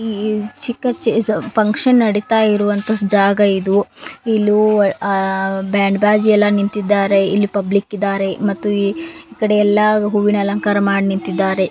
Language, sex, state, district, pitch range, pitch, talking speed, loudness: Kannada, female, Karnataka, Belgaum, 200-215 Hz, 205 Hz, 115 wpm, -15 LUFS